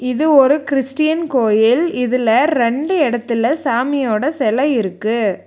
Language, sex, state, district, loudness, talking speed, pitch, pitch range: Tamil, female, Tamil Nadu, Nilgiris, -15 LUFS, 110 wpm, 255 Hz, 230-295 Hz